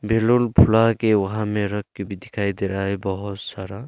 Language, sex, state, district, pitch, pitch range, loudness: Hindi, male, Arunachal Pradesh, Longding, 100 Hz, 100-110 Hz, -21 LUFS